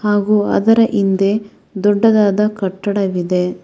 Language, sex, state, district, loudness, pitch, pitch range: Kannada, female, Karnataka, Bangalore, -15 LUFS, 205 Hz, 195-210 Hz